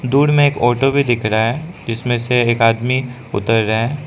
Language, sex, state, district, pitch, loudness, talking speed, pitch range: Hindi, male, Arunachal Pradesh, Lower Dibang Valley, 120 Hz, -16 LUFS, 220 wpm, 115-140 Hz